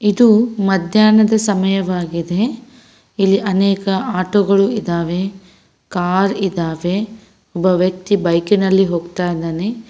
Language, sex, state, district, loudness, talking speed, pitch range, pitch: Kannada, female, Karnataka, Raichur, -16 LUFS, 85 wpm, 180-210 Hz, 195 Hz